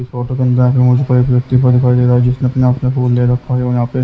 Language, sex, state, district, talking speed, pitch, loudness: Hindi, male, Haryana, Jhajjar, 280 wpm, 125 Hz, -13 LUFS